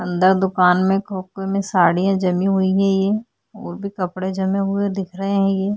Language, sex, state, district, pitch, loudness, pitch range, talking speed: Hindi, female, Uttarakhand, Tehri Garhwal, 195 Hz, -19 LUFS, 185-195 Hz, 200 wpm